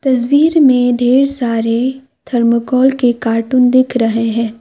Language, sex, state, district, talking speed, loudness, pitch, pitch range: Hindi, female, Assam, Kamrup Metropolitan, 130 wpm, -13 LUFS, 250 Hz, 230-265 Hz